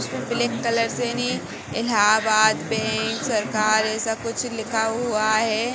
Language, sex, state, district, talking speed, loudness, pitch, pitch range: Hindi, female, Jharkhand, Sahebganj, 125 wpm, -22 LUFS, 225 Hz, 215-235 Hz